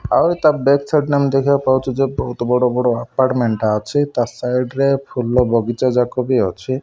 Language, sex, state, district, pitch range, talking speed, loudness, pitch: Odia, male, Odisha, Malkangiri, 125-140 Hz, 195 wpm, -17 LUFS, 130 Hz